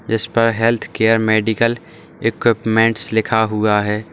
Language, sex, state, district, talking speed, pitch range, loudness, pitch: Hindi, male, Uttar Pradesh, Saharanpur, 115 wpm, 110-115 Hz, -16 LUFS, 110 Hz